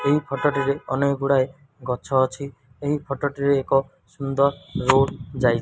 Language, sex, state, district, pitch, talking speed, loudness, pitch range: Odia, male, Odisha, Malkangiri, 140 Hz, 160 wpm, -23 LUFS, 130-140 Hz